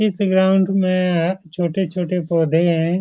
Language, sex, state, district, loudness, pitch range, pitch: Hindi, male, Bihar, Supaul, -18 LUFS, 170-190 Hz, 180 Hz